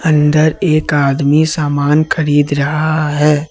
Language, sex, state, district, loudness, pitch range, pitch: Hindi, male, Jharkhand, Ranchi, -13 LUFS, 145-155 Hz, 150 Hz